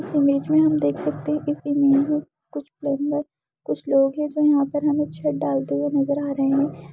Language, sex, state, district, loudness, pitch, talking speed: Hindi, female, Uttar Pradesh, Ghazipur, -22 LUFS, 280 Hz, 225 wpm